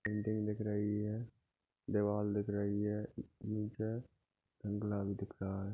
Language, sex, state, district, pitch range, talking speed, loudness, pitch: Hindi, male, Goa, North and South Goa, 100-105 Hz, 125 wpm, -39 LUFS, 105 Hz